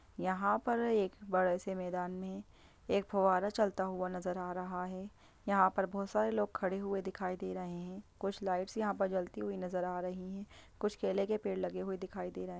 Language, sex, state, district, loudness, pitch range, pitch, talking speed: Hindi, female, Bihar, Lakhisarai, -36 LUFS, 185-200 Hz, 190 Hz, 220 wpm